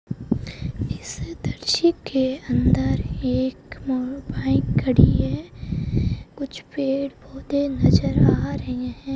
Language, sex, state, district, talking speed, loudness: Hindi, female, Rajasthan, Jaisalmer, 90 wpm, -23 LUFS